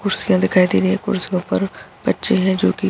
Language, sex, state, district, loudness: Hindi, female, Bihar, Saharsa, -17 LUFS